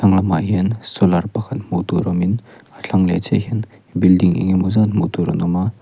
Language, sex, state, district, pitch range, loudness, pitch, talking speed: Mizo, male, Mizoram, Aizawl, 90-110 Hz, -18 LUFS, 95 Hz, 215 wpm